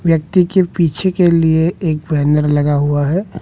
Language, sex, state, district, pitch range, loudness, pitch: Hindi, male, Bihar, West Champaran, 150-180 Hz, -14 LUFS, 165 Hz